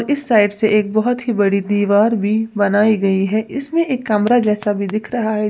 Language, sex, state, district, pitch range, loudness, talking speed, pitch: Hindi, female, Uttar Pradesh, Lalitpur, 205-235 Hz, -16 LUFS, 220 wpm, 215 Hz